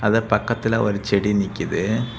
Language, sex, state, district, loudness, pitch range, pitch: Tamil, male, Tamil Nadu, Kanyakumari, -21 LUFS, 105-115 Hz, 110 Hz